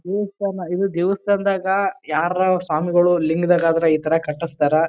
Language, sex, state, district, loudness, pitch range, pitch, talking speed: Kannada, male, Karnataka, Bijapur, -19 LUFS, 165-195 Hz, 175 Hz, 125 wpm